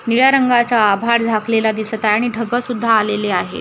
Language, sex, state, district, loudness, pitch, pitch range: Marathi, female, Maharashtra, Gondia, -15 LUFS, 225 Hz, 215-240 Hz